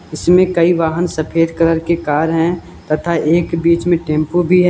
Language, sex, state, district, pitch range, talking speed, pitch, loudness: Hindi, male, Uttar Pradesh, Lucknow, 160-175 Hz, 190 wpm, 170 Hz, -15 LUFS